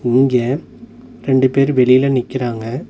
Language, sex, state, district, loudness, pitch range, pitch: Tamil, male, Tamil Nadu, Nilgiris, -15 LUFS, 125-135 Hz, 130 Hz